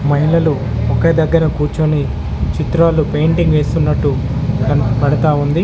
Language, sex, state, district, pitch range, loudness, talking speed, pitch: Telugu, male, Telangana, Mahabubabad, 140-160 Hz, -15 LUFS, 95 wpm, 150 Hz